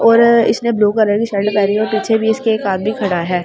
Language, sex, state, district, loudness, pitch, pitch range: Hindi, male, Delhi, New Delhi, -14 LUFS, 215 Hz, 200-225 Hz